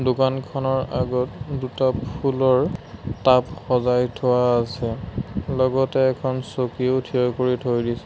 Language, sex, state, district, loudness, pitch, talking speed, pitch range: Assamese, male, Assam, Sonitpur, -22 LUFS, 125 Hz, 110 wpm, 125-130 Hz